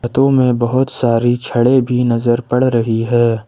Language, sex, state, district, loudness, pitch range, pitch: Hindi, male, Jharkhand, Ranchi, -14 LUFS, 120-125 Hz, 120 Hz